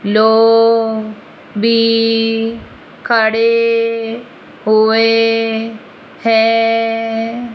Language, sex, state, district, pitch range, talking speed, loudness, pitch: Hindi, female, Rajasthan, Jaipur, 225-230 Hz, 40 wpm, -13 LUFS, 225 Hz